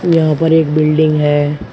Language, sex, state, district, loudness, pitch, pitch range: Hindi, male, Uttar Pradesh, Shamli, -12 LUFS, 155 Hz, 150-160 Hz